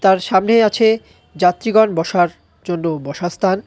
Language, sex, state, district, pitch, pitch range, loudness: Bengali, male, West Bengal, Cooch Behar, 190 Hz, 175-220 Hz, -16 LUFS